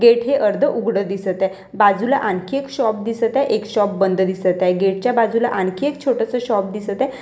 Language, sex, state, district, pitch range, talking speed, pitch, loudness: Marathi, female, Maharashtra, Washim, 195-250 Hz, 215 wpm, 215 Hz, -19 LUFS